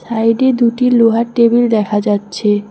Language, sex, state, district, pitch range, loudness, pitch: Bengali, female, West Bengal, Cooch Behar, 210-240 Hz, -13 LUFS, 230 Hz